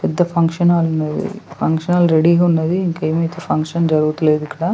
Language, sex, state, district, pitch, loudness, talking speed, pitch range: Telugu, female, Telangana, Nalgonda, 165 Hz, -16 LUFS, 165 wpm, 155-175 Hz